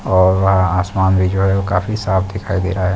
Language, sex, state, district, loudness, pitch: Hindi, male, Chhattisgarh, Balrampur, -16 LUFS, 95 Hz